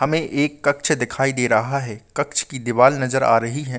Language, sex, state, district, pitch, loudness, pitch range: Hindi, male, Chhattisgarh, Bastar, 135 Hz, -19 LUFS, 125-140 Hz